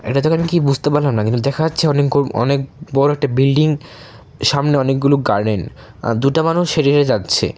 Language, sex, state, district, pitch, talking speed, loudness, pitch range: Bengali, male, Tripura, West Tripura, 140 Hz, 180 wpm, -16 LUFS, 135-150 Hz